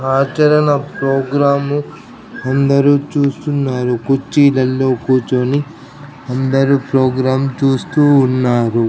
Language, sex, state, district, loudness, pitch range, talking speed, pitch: Telugu, male, Andhra Pradesh, Krishna, -14 LUFS, 130-145 Hz, 65 wpm, 135 Hz